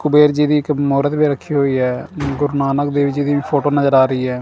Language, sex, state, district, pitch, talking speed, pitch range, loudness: Punjabi, male, Punjab, Kapurthala, 145 Hz, 260 wpm, 140-150 Hz, -16 LUFS